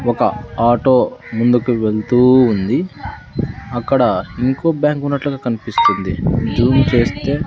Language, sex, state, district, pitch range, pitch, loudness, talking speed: Telugu, male, Andhra Pradesh, Sri Satya Sai, 115-135 Hz, 125 Hz, -16 LUFS, 95 wpm